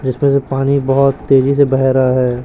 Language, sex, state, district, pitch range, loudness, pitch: Hindi, male, Chhattisgarh, Raipur, 130-140 Hz, -13 LUFS, 135 Hz